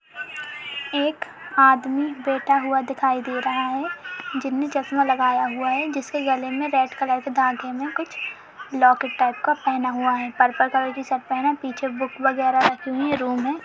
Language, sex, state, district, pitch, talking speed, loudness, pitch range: Hindi, female, Uttar Pradesh, Budaun, 270 Hz, 185 wpm, -22 LUFS, 260-285 Hz